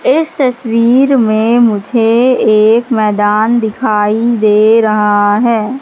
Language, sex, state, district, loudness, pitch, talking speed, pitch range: Hindi, female, Madhya Pradesh, Katni, -10 LUFS, 225 Hz, 105 wpm, 215-240 Hz